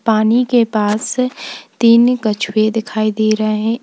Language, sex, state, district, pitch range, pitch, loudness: Hindi, female, Uttar Pradesh, Lalitpur, 215-235 Hz, 220 Hz, -15 LUFS